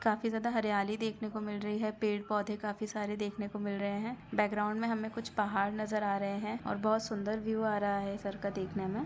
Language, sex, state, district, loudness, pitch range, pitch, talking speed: Hindi, female, Jharkhand, Sahebganj, -35 LUFS, 205-220 Hz, 210 Hz, 245 wpm